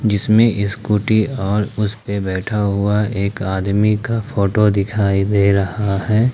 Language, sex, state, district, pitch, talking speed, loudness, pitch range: Hindi, male, Jharkhand, Ranchi, 105 Hz, 140 wpm, -17 LUFS, 100-110 Hz